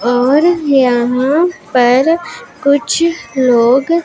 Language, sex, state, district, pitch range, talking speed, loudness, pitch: Hindi, female, Punjab, Pathankot, 245-330 Hz, 75 wpm, -12 LUFS, 275 Hz